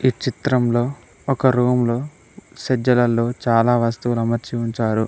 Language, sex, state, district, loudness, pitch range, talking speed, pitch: Telugu, male, Telangana, Mahabubabad, -19 LUFS, 115-125 Hz, 105 wpm, 120 Hz